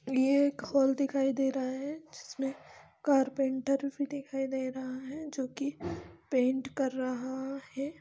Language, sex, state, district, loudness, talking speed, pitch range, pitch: Hindi, female, Chhattisgarh, Raigarh, -32 LUFS, 150 wpm, 260-280 Hz, 270 Hz